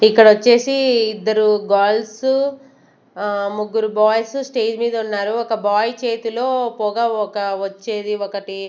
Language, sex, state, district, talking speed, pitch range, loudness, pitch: Telugu, female, Andhra Pradesh, Sri Satya Sai, 115 wpm, 210-235 Hz, -18 LUFS, 220 Hz